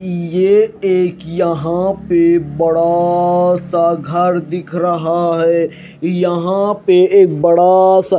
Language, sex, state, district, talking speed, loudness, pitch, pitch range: Hindi, male, Himachal Pradesh, Shimla, 110 wpm, -13 LUFS, 175 Hz, 170-185 Hz